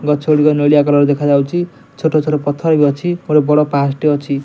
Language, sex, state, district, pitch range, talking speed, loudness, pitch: Odia, male, Odisha, Nuapada, 145-155 Hz, 190 wpm, -14 LUFS, 150 Hz